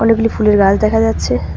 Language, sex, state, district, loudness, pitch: Bengali, female, West Bengal, Cooch Behar, -13 LUFS, 200 Hz